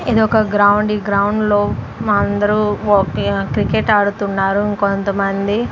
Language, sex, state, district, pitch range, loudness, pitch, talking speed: Telugu, female, Andhra Pradesh, Sri Satya Sai, 200-210 Hz, -16 LUFS, 205 Hz, 115 wpm